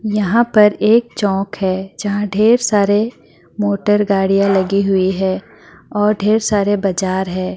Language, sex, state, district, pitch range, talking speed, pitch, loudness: Hindi, female, Bihar, Madhepura, 195-210 Hz, 145 wpm, 205 Hz, -15 LUFS